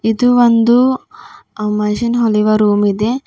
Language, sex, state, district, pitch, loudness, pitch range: Kannada, female, Karnataka, Bidar, 230 Hz, -13 LUFS, 210-245 Hz